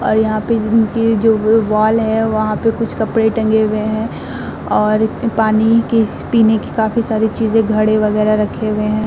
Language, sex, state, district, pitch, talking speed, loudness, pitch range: Hindi, female, Uttar Pradesh, Muzaffarnagar, 220 Hz, 170 wpm, -15 LUFS, 215-225 Hz